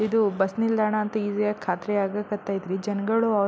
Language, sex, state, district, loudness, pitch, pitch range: Kannada, female, Karnataka, Belgaum, -25 LUFS, 210 Hz, 200-215 Hz